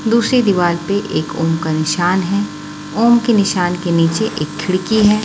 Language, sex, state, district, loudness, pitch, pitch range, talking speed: Hindi, female, Chhattisgarh, Raipur, -16 LUFS, 190 Hz, 170-215 Hz, 185 wpm